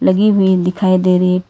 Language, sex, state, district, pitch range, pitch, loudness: Hindi, female, Karnataka, Bangalore, 180-190 Hz, 185 Hz, -13 LUFS